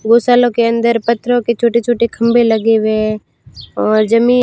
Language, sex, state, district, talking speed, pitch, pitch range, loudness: Hindi, female, Rajasthan, Barmer, 160 wpm, 235 Hz, 225-240 Hz, -13 LUFS